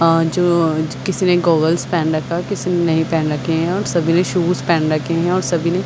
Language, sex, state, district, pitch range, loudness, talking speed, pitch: Hindi, female, Chhattisgarh, Bilaspur, 160-180 Hz, -17 LUFS, 245 wpm, 170 Hz